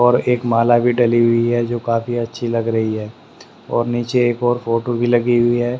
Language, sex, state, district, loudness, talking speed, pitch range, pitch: Hindi, male, Haryana, Rohtak, -17 LUFS, 230 wpm, 115-120 Hz, 120 Hz